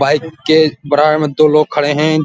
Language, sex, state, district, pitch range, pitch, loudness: Hindi, male, Uttar Pradesh, Muzaffarnagar, 145-155 Hz, 150 Hz, -13 LUFS